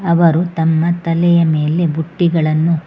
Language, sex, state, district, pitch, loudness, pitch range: Kannada, female, Karnataka, Bangalore, 165 Hz, -14 LUFS, 160-170 Hz